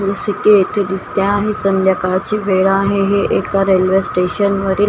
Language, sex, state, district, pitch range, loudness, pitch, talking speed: Marathi, female, Maharashtra, Washim, 190-205 Hz, -15 LUFS, 195 Hz, 145 wpm